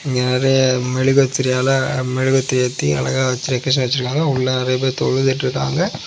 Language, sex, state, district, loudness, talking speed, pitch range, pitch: Tamil, male, Tamil Nadu, Kanyakumari, -17 LUFS, 130 wpm, 125-135 Hz, 130 Hz